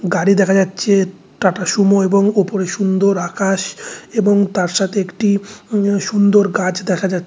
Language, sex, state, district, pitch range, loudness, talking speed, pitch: Bengali, male, West Bengal, North 24 Parganas, 190-200 Hz, -16 LUFS, 140 wpm, 195 Hz